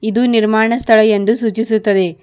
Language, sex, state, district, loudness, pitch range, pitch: Kannada, female, Karnataka, Bidar, -13 LUFS, 215-225 Hz, 220 Hz